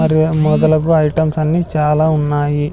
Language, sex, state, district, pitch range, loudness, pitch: Telugu, male, Andhra Pradesh, Sri Satya Sai, 150-160 Hz, -14 LUFS, 155 Hz